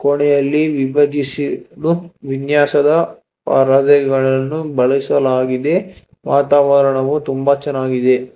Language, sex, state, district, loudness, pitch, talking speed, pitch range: Kannada, male, Karnataka, Bangalore, -15 LUFS, 140 Hz, 55 wpm, 135-145 Hz